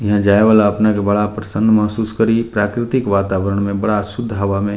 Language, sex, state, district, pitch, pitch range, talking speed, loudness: Bhojpuri, male, Bihar, Muzaffarpur, 105 Hz, 100-110 Hz, 215 wpm, -16 LUFS